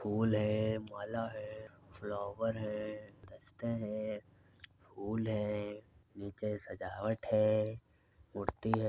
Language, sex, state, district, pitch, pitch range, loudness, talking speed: Hindi, male, Uttar Pradesh, Varanasi, 105 Hz, 100-110 Hz, -37 LUFS, 95 wpm